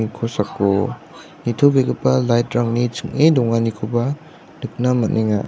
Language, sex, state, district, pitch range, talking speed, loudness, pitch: Garo, male, Meghalaya, West Garo Hills, 110-130 Hz, 75 wpm, -18 LUFS, 120 Hz